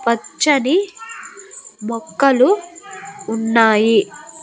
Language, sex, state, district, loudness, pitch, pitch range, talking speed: Telugu, female, Andhra Pradesh, Annamaya, -16 LUFS, 275 Hz, 225-370 Hz, 40 wpm